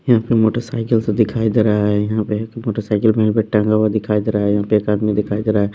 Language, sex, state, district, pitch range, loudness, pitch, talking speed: Hindi, male, Bihar, West Champaran, 105-110 Hz, -17 LUFS, 110 Hz, 280 wpm